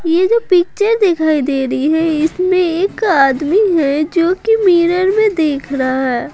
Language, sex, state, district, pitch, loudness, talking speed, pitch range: Hindi, female, Bihar, Patna, 340 Hz, -14 LUFS, 170 wpm, 285-380 Hz